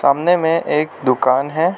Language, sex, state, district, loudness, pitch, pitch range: Hindi, male, Arunachal Pradesh, Lower Dibang Valley, -16 LUFS, 155 Hz, 135-165 Hz